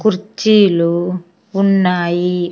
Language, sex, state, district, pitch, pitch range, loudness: Telugu, female, Andhra Pradesh, Sri Satya Sai, 180 Hz, 175-195 Hz, -15 LUFS